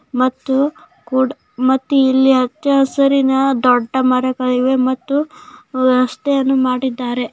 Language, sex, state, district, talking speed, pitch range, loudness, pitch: Kannada, female, Karnataka, Gulbarga, 100 wpm, 255-275 Hz, -16 LUFS, 260 Hz